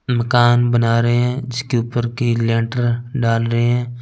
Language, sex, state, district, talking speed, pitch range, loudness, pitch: Hindi, male, Punjab, Fazilka, 180 wpm, 115-120 Hz, -17 LUFS, 120 Hz